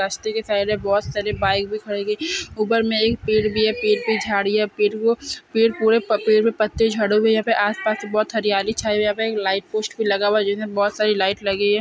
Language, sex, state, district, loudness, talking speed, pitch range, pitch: Hindi, female, Maharashtra, Solapur, -20 LUFS, 280 wpm, 205-220 Hz, 215 Hz